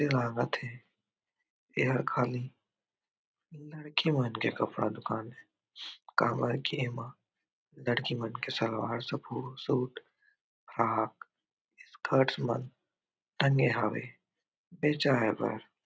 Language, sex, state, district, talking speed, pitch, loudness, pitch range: Chhattisgarhi, male, Chhattisgarh, Raigarh, 100 wpm, 125 Hz, -32 LUFS, 115-140 Hz